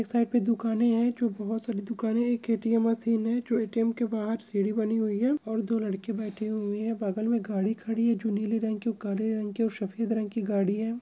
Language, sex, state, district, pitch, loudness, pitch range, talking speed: Hindi, female, Andhra Pradesh, Krishna, 225 Hz, -28 LUFS, 215-230 Hz, 250 wpm